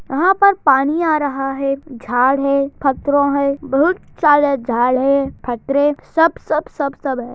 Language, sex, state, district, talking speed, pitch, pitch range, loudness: Hindi, female, Andhra Pradesh, Anantapur, 155 wpm, 275 Hz, 270-295 Hz, -16 LUFS